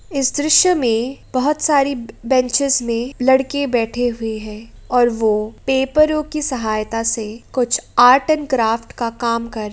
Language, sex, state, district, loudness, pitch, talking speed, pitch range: Hindi, female, Uttar Pradesh, Jalaun, -17 LUFS, 245 Hz, 160 wpm, 230-275 Hz